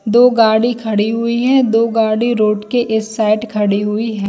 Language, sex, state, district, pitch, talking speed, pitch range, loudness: Hindi, female, Jharkhand, Jamtara, 225 Hz, 195 wpm, 215-235 Hz, -14 LUFS